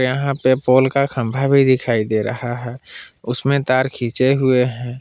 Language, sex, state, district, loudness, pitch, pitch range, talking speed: Hindi, male, Jharkhand, Palamu, -17 LUFS, 130 Hz, 120-135 Hz, 165 wpm